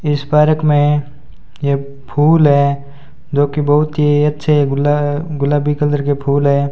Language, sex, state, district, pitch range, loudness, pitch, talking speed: Hindi, male, Rajasthan, Bikaner, 140-150 Hz, -14 LUFS, 145 Hz, 150 wpm